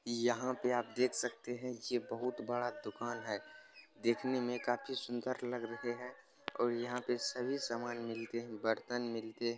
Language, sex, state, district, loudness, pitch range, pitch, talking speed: Hindi, male, Bihar, Supaul, -39 LUFS, 120-125 Hz, 120 Hz, 175 wpm